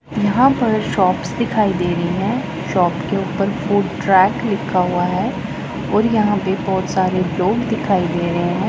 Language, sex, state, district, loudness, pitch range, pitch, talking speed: Hindi, female, Punjab, Pathankot, -18 LUFS, 180-210 Hz, 195 Hz, 175 wpm